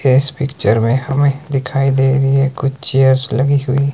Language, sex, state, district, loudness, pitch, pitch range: Hindi, male, Himachal Pradesh, Shimla, -15 LUFS, 135 Hz, 130-140 Hz